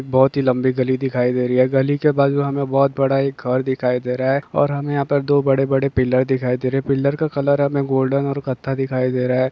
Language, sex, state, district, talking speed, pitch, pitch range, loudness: Hindi, male, Bihar, Kishanganj, 260 wpm, 135 Hz, 130-140 Hz, -19 LUFS